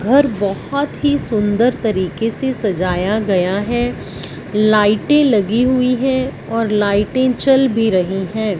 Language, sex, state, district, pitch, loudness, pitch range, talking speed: Hindi, female, Punjab, Fazilka, 220 Hz, -16 LUFS, 205-255 Hz, 130 wpm